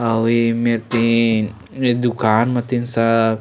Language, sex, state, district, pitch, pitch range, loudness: Chhattisgarhi, male, Chhattisgarh, Sarguja, 115 Hz, 115-120 Hz, -17 LUFS